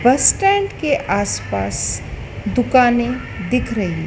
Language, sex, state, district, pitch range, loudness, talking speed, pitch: Hindi, female, Madhya Pradesh, Dhar, 165-255 Hz, -18 LUFS, 105 wpm, 240 Hz